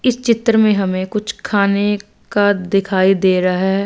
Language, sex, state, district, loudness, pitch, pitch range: Hindi, female, Punjab, Fazilka, -16 LUFS, 200 Hz, 190-210 Hz